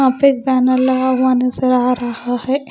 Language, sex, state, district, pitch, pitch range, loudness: Hindi, female, Punjab, Pathankot, 255 Hz, 250-260 Hz, -15 LUFS